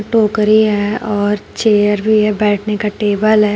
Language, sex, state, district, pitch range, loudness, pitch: Hindi, female, Uttar Pradesh, Shamli, 205-215 Hz, -14 LUFS, 210 Hz